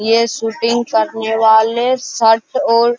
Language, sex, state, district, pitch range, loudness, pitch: Hindi, male, Bihar, Araria, 220-235 Hz, -14 LUFS, 225 Hz